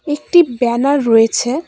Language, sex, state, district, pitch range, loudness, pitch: Bengali, female, West Bengal, Cooch Behar, 240-295 Hz, -13 LUFS, 260 Hz